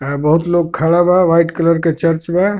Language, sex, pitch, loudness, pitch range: Bhojpuri, male, 165 Hz, -14 LUFS, 160-175 Hz